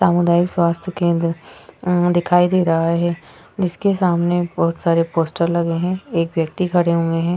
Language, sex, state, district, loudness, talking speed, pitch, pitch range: Hindi, female, Uttar Pradesh, Etah, -18 LUFS, 155 wpm, 170 Hz, 170-175 Hz